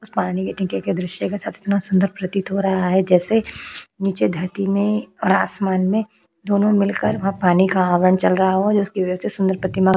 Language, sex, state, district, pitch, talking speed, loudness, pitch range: Hindi, female, Uttar Pradesh, Jyotiba Phule Nagar, 190 Hz, 190 wpm, -19 LUFS, 185-200 Hz